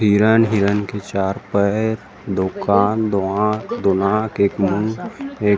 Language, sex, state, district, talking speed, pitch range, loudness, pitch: Chhattisgarhi, male, Chhattisgarh, Rajnandgaon, 150 wpm, 100-110 Hz, -19 LUFS, 100 Hz